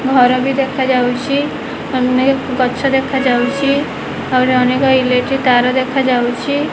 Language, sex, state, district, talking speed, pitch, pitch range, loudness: Odia, female, Odisha, Khordha, 100 wpm, 260 Hz, 250-270 Hz, -14 LUFS